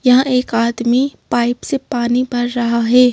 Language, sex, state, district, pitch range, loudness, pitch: Hindi, female, Madhya Pradesh, Bhopal, 240-255 Hz, -16 LUFS, 245 Hz